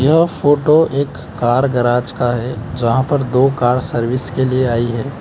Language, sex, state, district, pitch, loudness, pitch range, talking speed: Hindi, male, Mizoram, Aizawl, 130 Hz, -15 LUFS, 120-140 Hz, 185 wpm